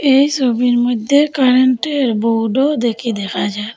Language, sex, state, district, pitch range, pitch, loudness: Bengali, female, Assam, Hailakandi, 230-275 Hz, 245 Hz, -15 LUFS